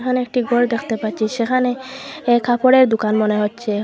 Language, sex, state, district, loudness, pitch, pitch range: Bengali, female, Assam, Hailakandi, -17 LUFS, 240 Hz, 220-255 Hz